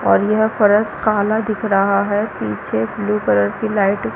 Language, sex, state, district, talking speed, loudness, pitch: Hindi, female, Chhattisgarh, Balrampur, 185 wpm, -17 LUFS, 205 Hz